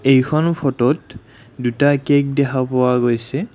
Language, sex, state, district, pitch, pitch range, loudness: Assamese, male, Assam, Kamrup Metropolitan, 130 Hz, 120-140 Hz, -17 LUFS